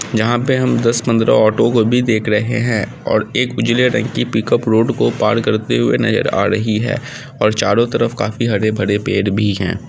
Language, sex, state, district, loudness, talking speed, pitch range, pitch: Angika, male, Bihar, Samastipur, -15 LUFS, 205 wpm, 105-120 Hz, 115 Hz